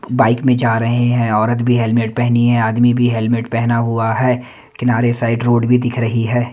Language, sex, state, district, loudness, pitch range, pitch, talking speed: Hindi, male, Delhi, New Delhi, -15 LUFS, 115-120 Hz, 120 Hz, 210 wpm